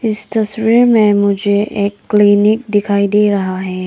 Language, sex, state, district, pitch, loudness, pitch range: Hindi, female, Arunachal Pradesh, Papum Pare, 205 Hz, -13 LUFS, 200-220 Hz